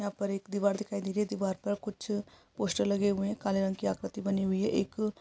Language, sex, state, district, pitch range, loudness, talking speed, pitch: Hindi, male, Uttarakhand, Tehri Garhwal, 195-210 Hz, -32 LUFS, 265 wpm, 200 Hz